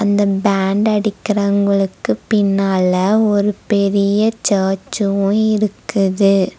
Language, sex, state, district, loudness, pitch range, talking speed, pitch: Tamil, female, Tamil Nadu, Nilgiris, -16 LUFS, 195-210 Hz, 75 wpm, 200 Hz